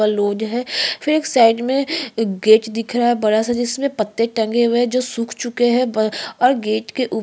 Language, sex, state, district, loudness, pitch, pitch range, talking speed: Hindi, female, Chhattisgarh, Korba, -18 LUFS, 235 Hz, 220-250 Hz, 215 wpm